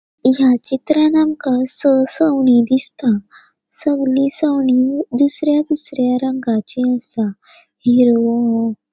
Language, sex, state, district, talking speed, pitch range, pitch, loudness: Konkani, female, Goa, North and South Goa, 85 wpm, 245-295 Hz, 260 Hz, -16 LUFS